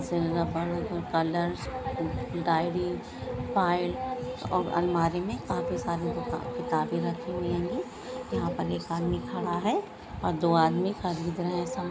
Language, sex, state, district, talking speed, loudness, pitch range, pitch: Hindi, female, Andhra Pradesh, Anantapur, 130 wpm, -30 LUFS, 165-175 Hz, 170 Hz